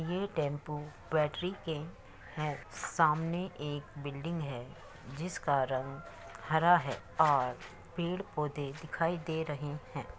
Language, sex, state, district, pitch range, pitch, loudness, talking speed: Hindi, female, Uttar Pradesh, Muzaffarnagar, 140-165 Hz, 150 Hz, -34 LUFS, 120 wpm